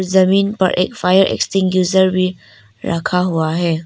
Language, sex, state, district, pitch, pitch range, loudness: Hindi, female, Arunachal Pradesh, Papum Pare, 185 Hz, 170-190 Hz, -15 LUFS